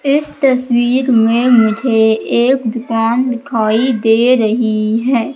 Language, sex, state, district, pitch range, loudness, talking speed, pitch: Hindi, female, Madhya Pradesh, Katni, 225-255 Hz, -13 LUFS, 110 wpm, 235 Hz